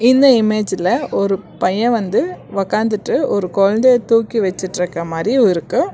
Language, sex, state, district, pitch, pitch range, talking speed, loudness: Tamil, female, Karnataka, Bangalore, 210 Hz, 190-230 Hz, 120 wpm, -16 LUFS